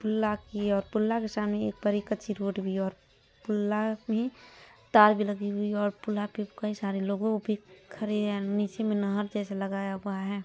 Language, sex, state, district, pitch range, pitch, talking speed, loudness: Hindi, female, Bihar, Madhepura, 200-215 Hz, 205 Hz, 220 wpm, -30 LUFS